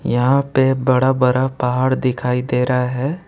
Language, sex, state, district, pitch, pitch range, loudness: Hindi, male, West Bengal, Alipurduar, 130 Hz, 125-130 Hz, -17 LUFS